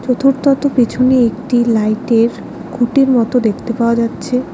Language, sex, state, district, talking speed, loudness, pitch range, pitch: Bengali, female, West Bengal, Alipurduar, 130 wpm, -14 LUFS, 235-260 Hz, 245 Hz